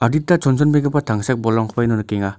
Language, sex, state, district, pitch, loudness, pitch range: Garo, male, Meghalaya, North Garo Hills, 120 Hz, -18 LUFS, 110-145 Hz